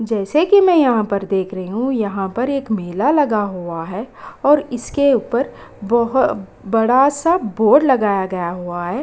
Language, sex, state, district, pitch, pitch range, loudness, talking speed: Hindi, female, Bihar, Kishanganj, 225 Hz, 195-275 Hz, -17 LUFS, 165 wpm